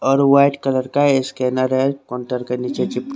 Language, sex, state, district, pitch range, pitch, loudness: Hindi, male, Chandigarh, Chandigarh, 125-140 Hz, 130 Hz, -18 LUFS